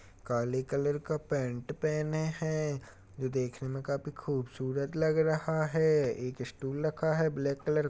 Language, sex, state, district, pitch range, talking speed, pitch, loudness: Hindi, male, Uttarakhand, Uttarkashi, 130-155 Hz, 160 wpm, 145 Hz, -32 LUFS